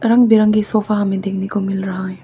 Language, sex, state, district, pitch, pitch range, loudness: Hindi, female, Arunachal Pradesh, Papum Pare, 205 Hz, 195-215 Hz, -16 LUFS